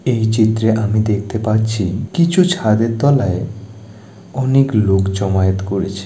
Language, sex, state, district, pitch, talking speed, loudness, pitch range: Bengali, male, West Bengal, Jalpaiguri, 110 Hz, 120 wpm, -16 LUFS, 100-115 Hz